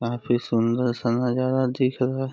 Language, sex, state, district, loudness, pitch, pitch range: Hindi, male, Uttar Pradesh, Deoria, -23 LUFS, 125 Hz, 120-130 Hz